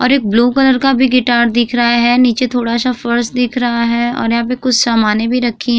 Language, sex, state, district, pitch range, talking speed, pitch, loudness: Hindi, female, Uttar Pradesh, Jyotiba Phule Nagar, 235-250 Hz, 260 wpm, 240 Hz, -13 LUFS